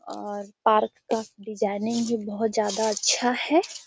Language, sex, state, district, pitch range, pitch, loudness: Hindi, female, Bihar, Gaya, 210-235 Hz, 220 Hz, -25 LUFS